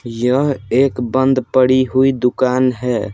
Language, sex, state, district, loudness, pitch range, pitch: Hindi, male, Bihar, Patna, -15 LUFS, 125-130 Hz, 130 Hz